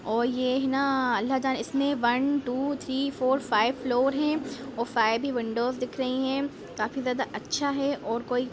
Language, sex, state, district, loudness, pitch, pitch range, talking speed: Hindi, female, Chhattisgarh, Rajnandgaon, -27 LUFS, 260 Hz, 245-275 Hz, 185 wpm